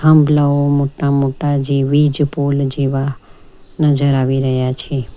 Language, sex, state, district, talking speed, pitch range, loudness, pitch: Gujarati, female, Gujarat, Valsad, 130 wpm, 135-145 Hz, -15 LUFS, 140 Hz